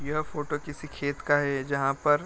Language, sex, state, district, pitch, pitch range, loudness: Hindi, male, Bihar, Gopalganj, 145 Hz, 140-150 Hz, -28 LUFS